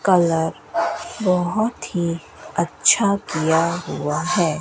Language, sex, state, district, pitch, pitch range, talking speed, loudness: Hindi, female, Rajasthan, Bikaner, 175 Hz, 165-200 Hz, 90 wpm, -20 LUFS